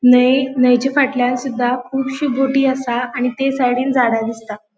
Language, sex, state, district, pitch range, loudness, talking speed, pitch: Konkani, female, Goa, North and South Goa, 245-270 Hz, -16 LUFS, 165 wpm, 250 Hz